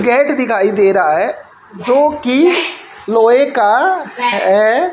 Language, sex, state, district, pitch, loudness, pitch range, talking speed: Hindi, male, Haryana, Jhajjar, 255 Hz, -13 LUFS, 220-330 Hz, 120 wpm